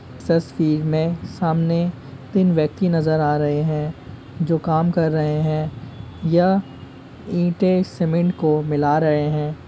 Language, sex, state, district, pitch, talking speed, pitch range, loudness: Hindi, male, Uttar Pradesh, Ghazipur, 155 Hz, 145 wpm, 150-170 Hz, -20 LUFS